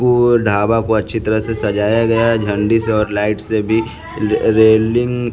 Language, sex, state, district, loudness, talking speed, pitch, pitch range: Hindi, male, Bihar, Kaimur, -15 LUFS, 190 wpm, 110 Hz, 105-115 Hz